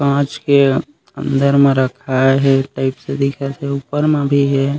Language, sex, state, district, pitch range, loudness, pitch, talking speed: Chhattisgarhi, male, Chhattisgarh, Raigarh, 135-140 Hz, -16 LUFS, 140 Hz, 175 wpm